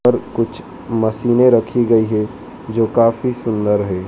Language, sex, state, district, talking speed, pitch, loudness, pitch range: Hindi, male, Madhya Pradesh, Dhar, 145 wpm, 115 Hz, -17 LUFS, 110-120 Hz